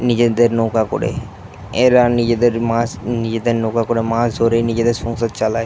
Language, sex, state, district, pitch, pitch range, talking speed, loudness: Bengali, male, West Bengal, Jhargram, 115 Hz, 115-120 Hz, 150 wpm, -17 LUFS